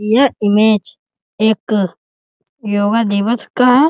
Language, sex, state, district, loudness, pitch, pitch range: Hindi, male, Bihar, East Champaran, -15 LUFS, 215 Hz, 205-235 Hz